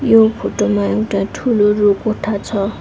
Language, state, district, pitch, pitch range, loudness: Nepali, West Bengal, Darjeeling, 210 Hz, 195-220 Hz, -16 LUFS